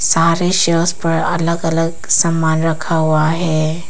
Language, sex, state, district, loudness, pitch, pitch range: Hindi, female, Arunachal Pradesh, Papum Pare, -15 LUFS, 165 Hz, 160-170 Hz